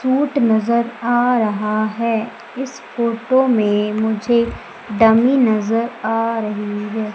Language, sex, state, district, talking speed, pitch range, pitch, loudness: Hindi, female, Madhya Pradesh, Umaria, 115 wpm, 215-240 Hz, 230 Hz, -17 LUFS